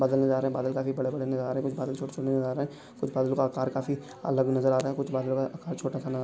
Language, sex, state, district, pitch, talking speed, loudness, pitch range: Hindi, male, Chhattisgarh, Sukma, 135 Hz, 355 wpm, -29 LUFS, 130-135 Hz